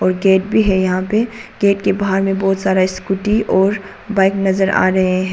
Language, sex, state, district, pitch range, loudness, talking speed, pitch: Hindi, female, Arunachal Pradesh, Papum Pare, 190-200 Hz, -16 LUFS, 200 wpm, 195 Hz